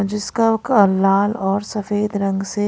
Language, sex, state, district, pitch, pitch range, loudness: Hindi, female, Haryana, Rohtak, 205 Hz, 195-210 Hz, -18 LUFS